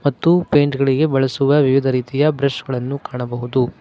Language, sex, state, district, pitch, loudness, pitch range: Kannada, male, Karnataka, Koppal, 135 Hz, -17 LUFS, 130-145 Hz